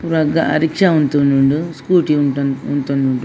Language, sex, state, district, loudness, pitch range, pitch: Tulu, female, Karnataka, Dakshina Kannada, -15 LUFS, 140-160 Hz, 145 Hz